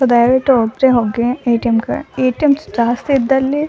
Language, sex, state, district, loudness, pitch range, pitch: Kannada, female, Karnataka, Dakshina Kannada, -14 LUFS, 235-270 Hz, 250 Hz